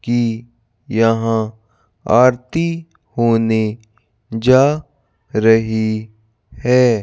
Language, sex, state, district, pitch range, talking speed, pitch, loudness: Hindi, male, Madhya Pradesh, Bhopal, 110-125 Hz, 60 wpm, 115 Hz, -16 LUFS